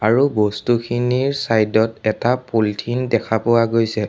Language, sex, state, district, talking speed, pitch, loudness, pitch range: Assamese, male, Assam, Sonitpur, 130 wpm, 115 Hz, -18 LUFS, 110-125 Hz